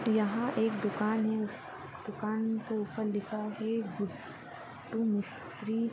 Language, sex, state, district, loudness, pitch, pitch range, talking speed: Hindi, female, Chhattisgarh, Sarguja, -34 LUFS, 220 Hz, 210-225 Hz, 120 wpm